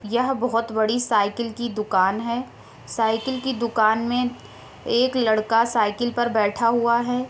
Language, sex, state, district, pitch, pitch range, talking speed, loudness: Hindi, female, Uttar Pradesh, Hamirpur, 235 Hz, 220-245 Hz, 165 wpm, -22 LUFS